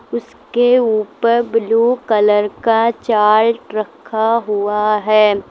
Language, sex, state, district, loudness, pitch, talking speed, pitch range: Hindi, female, Uttar Pradesh, Lucknow, -15 LUFS, 225 Hz, 100 wpm, 210-235 Hz